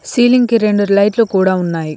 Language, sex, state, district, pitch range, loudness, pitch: Telugu, female, Telangana, Komaram Bheem, 190-230 Hz, -13 LUFS, 205 Hz